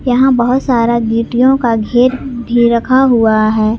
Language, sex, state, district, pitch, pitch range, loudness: Hindi, female, Jharkhand, Garhwa, 240 Hz, 230-255 Hz, -12 LUFS